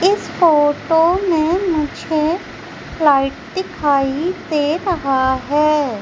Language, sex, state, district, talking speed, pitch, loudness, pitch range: Hindi, female, Madhya Pradesh, Umaria, 90 wpm, 310 Hz, -17 LUFS, 290-350 Hz